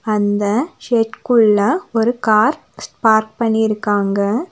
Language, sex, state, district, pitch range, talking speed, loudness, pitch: Tamil, female, Tamil Nadu, Nilgiris, 210-235 Hz, 95 wpm, -16 LUFS, 220 Hz